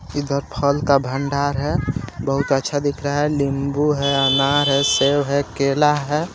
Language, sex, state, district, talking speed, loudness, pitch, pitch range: Hindi, male, Jharkhand, Garhwa, 170 wpm, -19 LUFS, 140 Hz, 140-145 Hz